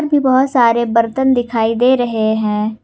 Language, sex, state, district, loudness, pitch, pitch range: Hindi, female, Jharkhand, Garhwa, -14 LUFS, 235 Hz, 225-260 Hz